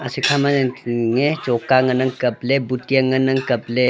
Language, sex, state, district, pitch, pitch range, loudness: Wancho, male, Arunachal Pradesh, Longding, 130 Hz, 125-135 Hz, -18 LUFS